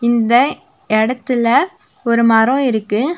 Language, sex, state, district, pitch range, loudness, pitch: Tamil, female, Tamil Nadu, Nilgiris, 225-260 Hz, -15 LUFS, 235 Hz